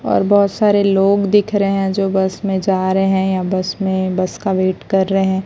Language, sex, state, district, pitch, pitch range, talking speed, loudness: Hindi, female, Chhattisgarh, Raipur, 195 Hz, 190-200 Hz, 240 wpm, -16 LUFS